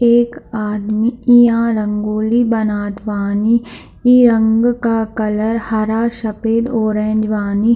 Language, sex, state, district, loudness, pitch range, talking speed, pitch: Hindi, female, Bihar, East Champaran, -15 LUFS, 215-235 Hz, 110 wpm, 225 Hz